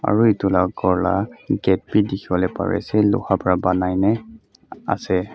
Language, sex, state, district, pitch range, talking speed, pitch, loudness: Nagamese, male, Mizoram, Aizawl, 90-105 Hz, 155 wpm, 95 Hz, -20 LUFS